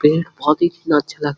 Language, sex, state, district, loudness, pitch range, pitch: Hindi, male, Uttarakhand, Uttarkashi, -18 LUFS, 150-165 Hz, 150 Hz